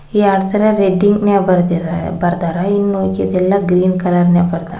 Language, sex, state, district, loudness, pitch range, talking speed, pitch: Kannada, female, Karnataka, Koppal, -14 LUFS, 175-200 Hz, 150 wpm, 185 Hz